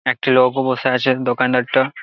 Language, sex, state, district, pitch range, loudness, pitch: Bengali, male, West Bengal, Jalpaiguri, 125-130 Hz, -17 LUFS, 130 Hz